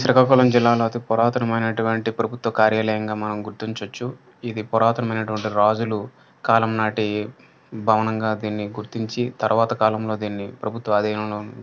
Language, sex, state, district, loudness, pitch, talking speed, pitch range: Telugu, male, Andhra Pradesh, Srikakulam, -22 LUFS, 110 Hz, 115 wpm, 105-115 Hz